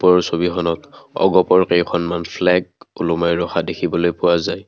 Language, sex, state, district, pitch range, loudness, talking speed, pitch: Assamese, male, Assam, Kamrup Metropolitan, 85-90 Hz, -18 LUFS, 140 wpm, 85 Hz